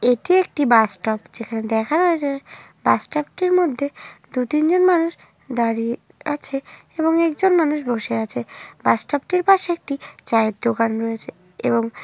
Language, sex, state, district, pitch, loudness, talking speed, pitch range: Bengali, female, West Bengal, North 24 Parganas, 275 Hz, -20 LUFS, 165 wpm, 230-330 Hz